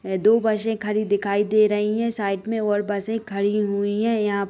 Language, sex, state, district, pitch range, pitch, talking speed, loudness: Hindi, female, Bihar, Darbhanga, 200-220 Hz, 210 Hz, 215 wpm, -22 LUFS